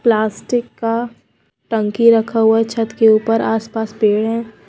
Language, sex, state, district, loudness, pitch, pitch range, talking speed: Hindi, female, Himachal Pradesh, Shimla, -16 LUFS, 225 Hz, 220-230 Hz, 155 wpm